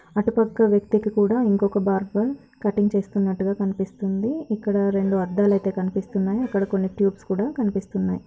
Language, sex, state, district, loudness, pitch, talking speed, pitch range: Telugu, female, Andhra Pradesh, Krishna, -23 LUFS, 200 Hz, 140 wpm, 195-215 Hz